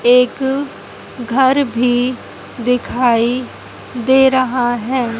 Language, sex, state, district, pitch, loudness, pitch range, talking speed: Hindi, female, Haryana, Jhajjar, 250 Hz, -15 LUFS, 245-265 Hz, 80 wpm